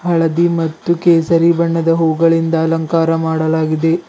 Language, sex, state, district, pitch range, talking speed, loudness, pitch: Kannada, male, Karnataka, Bidar, 160-170 Hz, 115 wpm, -14 LUFS, 165 Hz